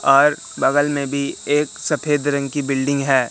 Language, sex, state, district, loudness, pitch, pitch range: Hindi, male, Madhya Pradesh, Katni, -19 LUFS, 140 Hz, 140-145 Hz